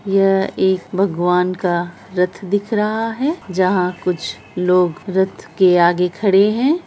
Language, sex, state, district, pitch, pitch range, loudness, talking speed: Hindi, female, Bihar, Araria, 190 Hz, 180-200 Hz, -17 LUFS, 140 wpm